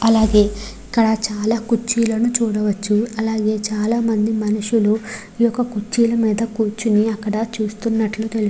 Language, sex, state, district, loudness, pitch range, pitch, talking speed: Telugu, female, Andhra Pradesh, Srikakulam, -19 LUFS, 210-230 Hz, 220 Hz, 120 wpm